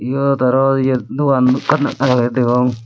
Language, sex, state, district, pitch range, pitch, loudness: Chakma, male, Tripura, Dhalai, 125-135 Hz, 130 Hz, -15 LUFS